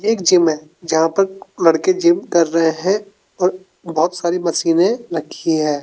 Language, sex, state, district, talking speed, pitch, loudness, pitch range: Hindi, male, Rajasthan, Jaipur, 165 wpm, 170 Hz, -17 LUFS, 165-195 Hz